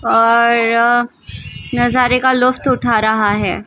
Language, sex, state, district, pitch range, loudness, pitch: Hindi, female, Maharashtra, Gondia, 230-250 Hz, -13 LUFS, 235 Hz